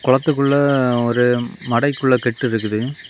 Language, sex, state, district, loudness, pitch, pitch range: Tamil, male, Tamil Nadu, Kanyakumari, -18 LUFS, 125 Hz, 120-140 Hz